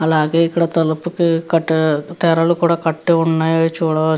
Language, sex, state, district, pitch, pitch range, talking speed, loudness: Telugu, female, Andhra Pradesh, Guntur, 165 Hz, 160-170 Hz, 145 wpm, -16 LUFS